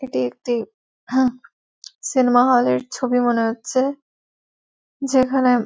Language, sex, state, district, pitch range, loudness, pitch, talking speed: Bengali, female, West Bengal, Malda, 235-260 Hz, -19 LUFS, 250 Hz, 105 wpm